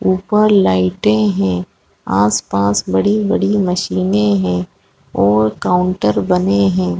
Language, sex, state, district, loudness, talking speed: Hindi, female, Chhattisgarh, Raigarh, -15 LUFS, 95 wpm